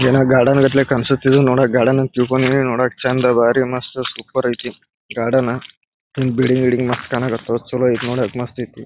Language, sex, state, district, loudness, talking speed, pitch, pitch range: Kannada, male, Karnataka, Bijapur, -17 LUFS, 185 wpm, 125 Hz, 125-130 Hz